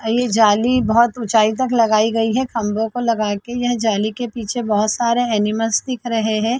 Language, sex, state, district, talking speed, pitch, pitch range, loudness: Hindi, female, Chhattisgarh, Bilaspur, 200 wpm, 230 Hz, 220-240 Hz, -18 LUFS